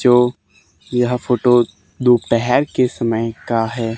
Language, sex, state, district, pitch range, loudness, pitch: Hindi, male, Haryana, Charkhi Dadri, 115-125 Hz, -17 LUFS, 120 Hz